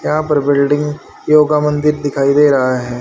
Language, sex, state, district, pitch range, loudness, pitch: Hindi, male, Haryana, Rohtak, 140-150 Hz, -13 LUFS, 145 Hz